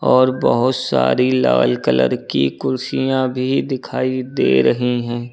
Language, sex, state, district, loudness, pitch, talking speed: Hindi, male, Uttar Pradesh, Lucknow, -17 LUFS, 120 Hz, 135 wpm